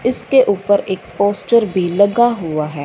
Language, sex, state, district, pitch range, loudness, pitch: Hindi, female, Punjab, Fazilka, 185-235 Hz, -15 LUFS, 200 Hz